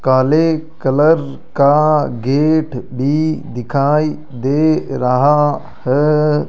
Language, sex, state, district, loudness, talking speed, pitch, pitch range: Hindi, male, Rajasthan, Jaipur, -15 LUFS, 85 wpm, 145 Hz, 130-155 Hz